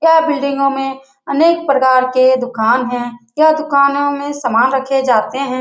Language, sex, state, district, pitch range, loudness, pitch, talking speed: Hindi, female, Bihar, Lakhisarai, 255-285 Hz, -14 LUFS, 270 Hz, 160 wpm